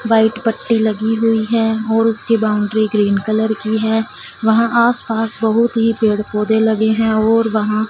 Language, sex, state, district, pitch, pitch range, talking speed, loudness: Hindi, female, Punjab, Fazilka, 220 Hz, 220-225 Hz, 160 wpm, -15 LUFS